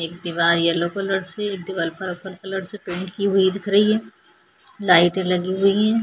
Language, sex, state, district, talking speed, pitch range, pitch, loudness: Hindi, female, Chhattisgarh, Sukma, 170 wpm, 175-200 Hz, 190 Hz, -21 LUFS